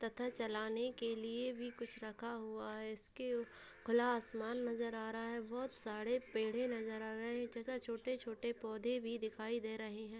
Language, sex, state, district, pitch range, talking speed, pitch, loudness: Hindi, female, Bihar, Purnia, 220-240 Hz, 220 wpm, 230 Hz, -43 LUFS